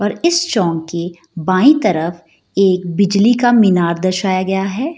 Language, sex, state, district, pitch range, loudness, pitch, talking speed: Hindi, female, Bihar, Gaya, 175-220 Hz, -15 LUFS, 195 Hz, 155 wpm